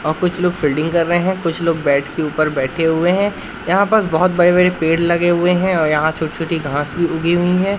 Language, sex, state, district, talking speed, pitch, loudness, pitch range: Hindi, male, Madhya Pradesh, Katni, 240 wpm, 170 Hz, -16 LUFS, 155-180 Hz